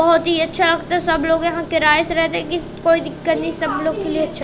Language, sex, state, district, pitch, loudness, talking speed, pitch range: Hindi, female, Madhya Pradesh, Katni, 330 Hz, -17 LUFS, 245 wpm, 320-335 Hz